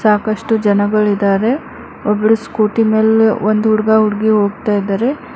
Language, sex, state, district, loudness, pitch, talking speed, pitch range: Kannada, female, Karnataka, Bangalore, -14 LUFS, 215 Hz, 110 wpm, 210-220 Hz